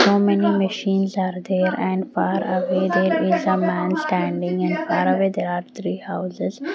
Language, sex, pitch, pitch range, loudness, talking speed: English, female, 185 Hz, 180-195 Hz, -21 LUFS, 180 wpm